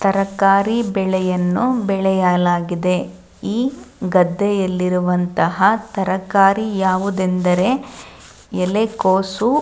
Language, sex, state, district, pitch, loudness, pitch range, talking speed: Kannada, female, Karnataka, Dharwad, 190 Hz, -18 LUFS, 180-205 Hz, 45 wpm